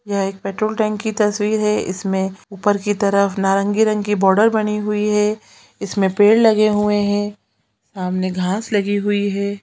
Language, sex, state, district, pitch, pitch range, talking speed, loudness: Hindi, female, Chhattisgarh, Sukma, 205 Hz, 195-210 Hz, 175 wpm, -18 LUFS